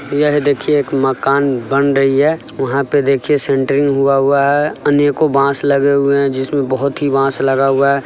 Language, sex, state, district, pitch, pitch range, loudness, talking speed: Hindi, male, Bihar, Sitamarhi, 140 Hz, 135-145 Hz, -14 LUFS, 185 wpm